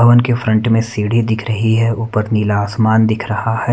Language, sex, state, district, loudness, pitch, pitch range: Hindi, male, Haryana, Charkhi Dadri, -15 LUFS, 110 Hz, 110-115 Hz